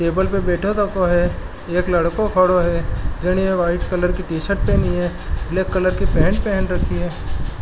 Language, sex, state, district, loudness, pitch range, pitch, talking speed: Marwari, male, Rajasthan, Nagaur, -19 LUFS, 170-185 Hz, 180 Hz, 180 wpm